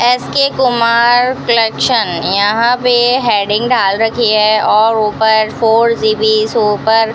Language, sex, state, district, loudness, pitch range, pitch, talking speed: Hindi, female, Rajasthan, Bikaner, -11 LUFS, 215-240 Hz, 225 Hz, 125 wpm